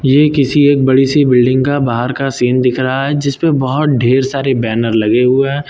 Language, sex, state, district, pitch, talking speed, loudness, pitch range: Hindi, male, Uttar Pradesh, Lucknow, 135 Hz, 220 wpm, -12 LUFS, 125-140 Hz